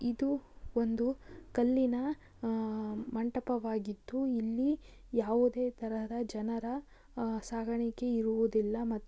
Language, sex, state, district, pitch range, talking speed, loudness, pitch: Kannada, female, Karnataka, Bijapur, 225-250 Hz, 95 wpm, -34 LUFS, 235 Hz